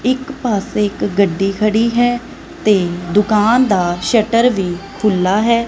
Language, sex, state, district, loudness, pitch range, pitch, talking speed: Punjabi, female, Punjab, Kapurthala, -15 LUFS, 195-235 Hz, 210 Hz, 135 wpm